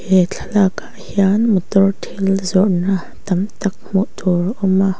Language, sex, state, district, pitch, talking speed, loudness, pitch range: Mizo, female, Mizoram, Aizawl, 195 Hz, 180 wpm, -17 LUFS, 190-200 Hz